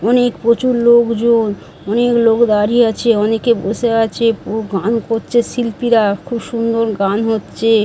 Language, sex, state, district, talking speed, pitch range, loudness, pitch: Bengali, female, West Bengal, Dakshin Dinajpur, 135 wpm, 220-235 Hz, -15 LUFS, 230 Hz